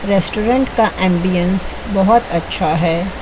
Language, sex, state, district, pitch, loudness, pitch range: Hindi, female, Chandigarh, Chandigarh, 190 Hz, -16 LUFS, 175-215 Hz